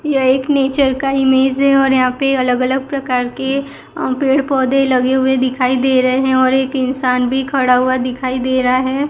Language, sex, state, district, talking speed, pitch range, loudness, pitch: Hindi, female, Gujarat, Gandhinagar, 205 wpm, 255-270 Hz, -15 LUFS, 265 Hz